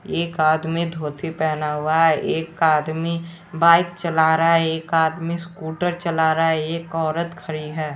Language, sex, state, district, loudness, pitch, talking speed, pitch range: Hindi, male, Bihar, West Champaran, -20 LUFS, 165 Hz, 165 wpm, 160-170 Hz